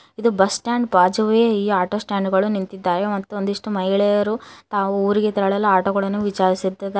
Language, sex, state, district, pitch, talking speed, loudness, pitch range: Kannada, female, Karnataka, Koppal, 200 Hz, 135 wpm, -20 LUFS, 195-210 Hz